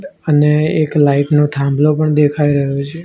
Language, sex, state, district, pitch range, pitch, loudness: Gujarati, male, Gujarat, Gandhinagar, 145-155 Hz, 150 Hz, -14 LUFS